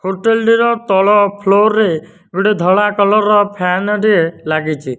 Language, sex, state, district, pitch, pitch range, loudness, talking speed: Odia, male, Odisha, Nuapada, 200 Hz, 180-210 Hz, -13 LUFS, 145 wpm